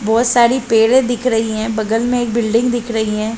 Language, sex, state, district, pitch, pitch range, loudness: Hindi, female, Chhattisgarh, Balrampur, 230 Hz, 220-240 Hz, -15 LUFS